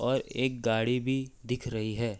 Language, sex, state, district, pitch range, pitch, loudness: Hindi, male, Uttar Pradesh, Hamirpur, 115-130 Hz, 125 Hz, -31 LUFS